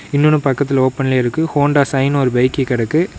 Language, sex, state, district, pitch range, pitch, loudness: Tamil, male, Tamil Nadu, Namakkal, 130-145 Hz, 135 Hz, -15 LUFS